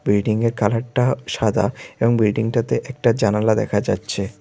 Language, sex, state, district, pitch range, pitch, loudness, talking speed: Bengali, male, Tripura, West Tripura, 105-115 Hz, 110 Hz, -20 LUFS, 125 wpm